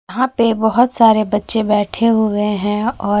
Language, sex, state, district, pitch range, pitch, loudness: Hindi, female, Chhattisgarh, Bastar, 210-230 Hz, 220 Hz, -15 LUFS